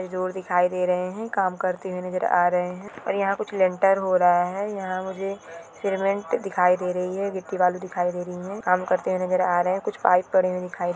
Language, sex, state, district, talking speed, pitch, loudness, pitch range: Hindi, female, Andhra Pradesh, Chittoor, 255 wpm, 185 Hz, -24 LUFS, 180-195 Hz